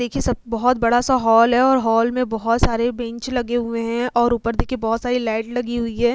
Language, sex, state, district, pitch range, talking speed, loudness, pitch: Hindi, female, Uttar Pradesh, Hamirpur, 230-245 Hz, 235 wpm, -19 LUFS, 240 Hz